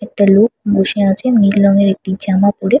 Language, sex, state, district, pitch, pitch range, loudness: Bengali, female, West Bengal, Purulia, 200 Hz, 195-210 Hz, -13 LUFS